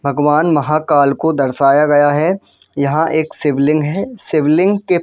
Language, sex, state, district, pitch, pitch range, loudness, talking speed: Hindi, male, Jharkhand, Jamtara, 150 Hz, 145-160 Hz, -14 LUFS, 155 wpm